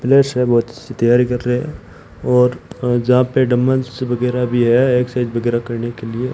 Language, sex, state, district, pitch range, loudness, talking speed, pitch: Hindi, male, Rajasthan, Bikaner, 120-125 Hz, -16 LUFS, 190 wpm, 125 Hz